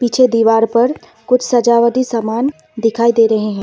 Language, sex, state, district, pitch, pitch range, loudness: Hindi, female, Assam, Kamrup Metropolitan, 235 Hz, 225-250 Hz, -14 LUFS